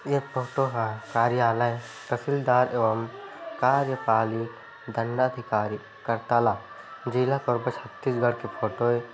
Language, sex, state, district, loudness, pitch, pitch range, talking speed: Hindi, male, Chhattisgarh, Korba, -26 LUFS, 120 Hz, 115-130 Hz, 100 wpm